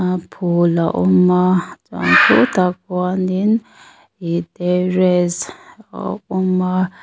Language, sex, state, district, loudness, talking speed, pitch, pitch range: Mizo, female, Mizoram, Aizawl, -16 LUFS, 100 wpm, 180 Hz, 175-185 Hz